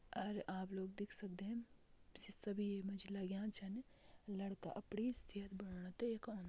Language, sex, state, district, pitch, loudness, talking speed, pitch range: Garhwali, female, Uttarakhand, Tehri Garhwal, 200 Hz, -47 LUFS, 150 wpm, 195-210 Hz